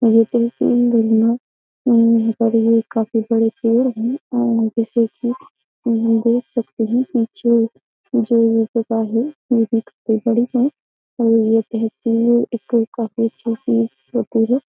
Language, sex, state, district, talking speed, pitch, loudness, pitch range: Hindi, female, Uttar Pradesh, Jyotiba Phule Nagar, 115 wpm, 230 Hz, -18 LUFS, 225-240 Hz